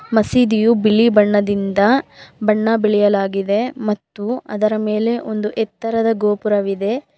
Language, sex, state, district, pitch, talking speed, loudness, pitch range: Kannada, female, Karnataka, Bangalore, 215 Hz, 90 wpm, -17 LUFS, 205-225 Hz